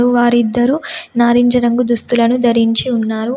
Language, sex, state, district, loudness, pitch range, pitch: Telugu, female, Telangana, Komaram Bheem, -13 LUFS, 235-245 Hz, 240 Hz